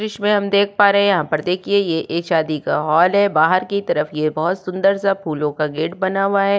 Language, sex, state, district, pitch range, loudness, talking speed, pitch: Hindi, female, Uttar Pradesh, Budaun, 160-200 Hz, -18 LUFS, 255 wpm, 185 Hz